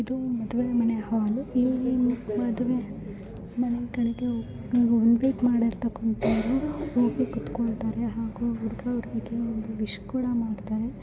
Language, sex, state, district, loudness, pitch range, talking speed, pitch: Kannada, female, Karnataka, Bellary, -27 LUFS, 225-245 Hz, 110 wpm, 235 Hz